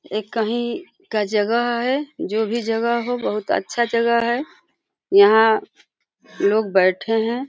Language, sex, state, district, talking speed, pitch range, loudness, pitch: Hindi, female, Uttar Pradesh, Deoria, 135 wpm, 215-240 Hz, -20 LUFS, 230 Hz